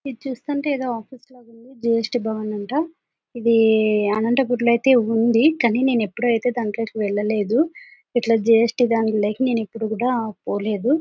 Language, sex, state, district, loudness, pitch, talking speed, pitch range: Telugu, female, Andhra Pradesh, Anantapur, -20 LUFS, 235 Hz, 160 wpm, 220-255 Hz